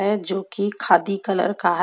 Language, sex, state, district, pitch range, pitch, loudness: Hindi, female, Jharkhand, Ranchi, 190-200 Hz, 195 Hz, -21 LUFS